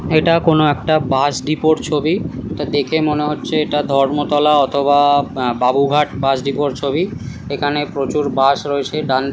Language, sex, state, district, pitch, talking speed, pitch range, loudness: Bengali, male, West Bengal, Kolkata, 145 Hz, 155 wpm, 140-150 Hz, -16 LUFS